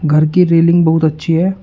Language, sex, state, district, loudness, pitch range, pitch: Hindi, male, Uttar Pradesh, Shamli, -12 LUFS, 155-175 Hz, 165 Hz